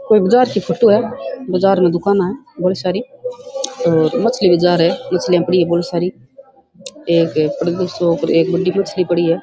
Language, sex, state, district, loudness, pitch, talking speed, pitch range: Rajasthani, female, Rajasthan, Churu, -16 LUFS, 185 Hz, 180 wpm, 170-230 Hz